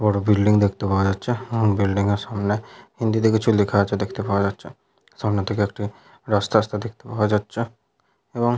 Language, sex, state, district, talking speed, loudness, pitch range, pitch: Bengali, male, West Bengal, Paschim Medinipur, 180 wpm, -22 LUFS, 100-115 Hz, 105 Hz